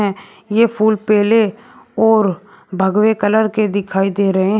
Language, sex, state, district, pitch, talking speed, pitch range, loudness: Hindi, male, Uttar Pradesh, Shamli, 210 Hz, 145 wpm, 195-220 Hz, -15 LUFS